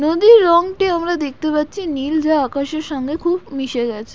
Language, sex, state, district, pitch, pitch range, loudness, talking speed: Bengali, female, West Bengal, Dakshin Dinajpur, 310 Hz, 280-345 Hz, -17 LUFS, 175 wpm